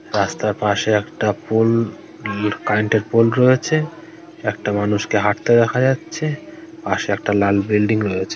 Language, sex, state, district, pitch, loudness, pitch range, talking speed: Bengali, male, West Bengal, North 24 Parganas, 110 Hz, -18 LUFS, 105-130 Hz, 130 wpm